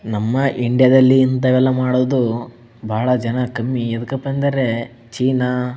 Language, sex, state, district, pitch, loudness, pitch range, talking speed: Kannada, male, Karnataka, Bellary, 125 Hz, -17 LUFS, 120-130 Hz, 125 wpm